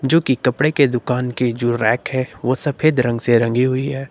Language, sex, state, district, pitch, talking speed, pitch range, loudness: Hindi, male, Uttar Pradesh, Lucknow, 125 Hz, 235 wpm, 120-135 Hz, -18 LUFS